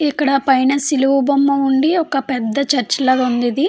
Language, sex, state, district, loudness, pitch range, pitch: Telugu, female, Andhra Pradesh, Anantapur, -16 LUFS, 260-280 Hz, 275 Hz